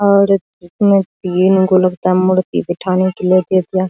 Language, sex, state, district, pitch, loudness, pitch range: Hindi, female, Bihar, Araria, 185 Hz, -14 LUFS, 185-190 Hz